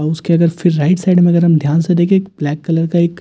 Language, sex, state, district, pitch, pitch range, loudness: Hindi, male, Delhi, New Delhi, 170 Hz, 160-175 Hz, -13 LUFS